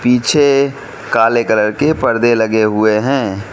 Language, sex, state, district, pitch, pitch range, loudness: Hindi, male, Manipur, Imphal West, 115 Hz, 110-135 Hz, -13 LUFS